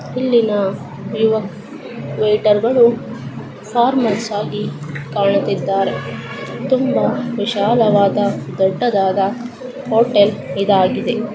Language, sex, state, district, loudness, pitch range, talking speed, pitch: Kannada, female, Karnataka, Dharwad, -17 LUFS, 195-240 Hz, 60 wpm, 210 Hz